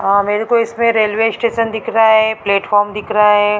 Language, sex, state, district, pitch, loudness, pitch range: Hindi, female, Maharashtra, Mumbai Suburban, 220 Hz, -14 LUFS, 205-225 Hz